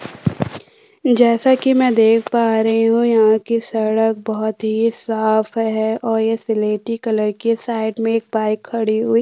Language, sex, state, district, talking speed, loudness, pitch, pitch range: Hindi, female, Uttarakhand, Tehri Garhwal, 165 wpm, -17 LUFS, 225 Hz, 220-230 Hz